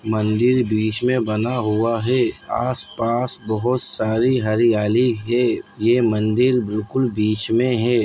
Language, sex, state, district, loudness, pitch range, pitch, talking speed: Hindi, male, Bihar, Bhagalpur, -19 LUFS, 110-125 Hz, 115 Hz, 125 wpm